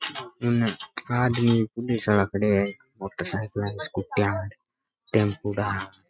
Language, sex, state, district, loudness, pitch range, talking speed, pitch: Rajasthani, male, Rajasthan, Nagaur, -26 LUFS, 100-115 Hz, 110 wpm, 105 Hz